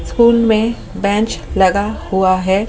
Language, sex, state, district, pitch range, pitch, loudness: Hindi, male, Delhi, New Delhi, 190-225 Hz, 205 Hz, -15 LUFS